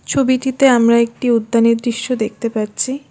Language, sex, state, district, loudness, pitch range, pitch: Bengali, female, West Bengal, Alipurduar, -16 LUFS, 230-260 Hz, 235 Hz